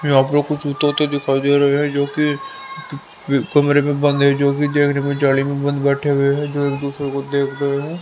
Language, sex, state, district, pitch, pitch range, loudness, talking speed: Hindi, male, Haryana, Rohtak, 140 Hz, 140-145 Hz, -17 LUFS, 230 wpm